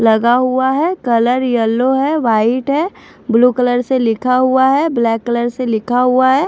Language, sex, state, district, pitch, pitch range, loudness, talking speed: Hindi, female, Punjab, Fazilka, 250 Hz, 235-260 Hz, -14 LUFS, 185 wpm